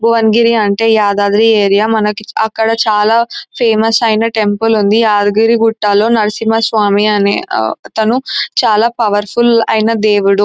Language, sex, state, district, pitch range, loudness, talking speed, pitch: Telugu, female, Telangana, Nalgonda, 210-225 Hz, -11 LUFS, 125 wpm, 220 Hz